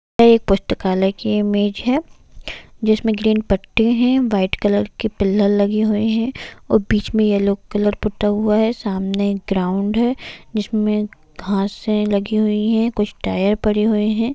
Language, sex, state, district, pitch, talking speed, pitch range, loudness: Hindi, female, Jharkhand, Jamtara, 210 Hz, 140 wpm, 200-220 Hz, -18 LUFS